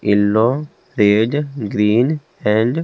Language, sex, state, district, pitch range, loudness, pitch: Hindi, male, Delhi, New Delhi, 105-140 Hz, -17 LUFS, 110 Hz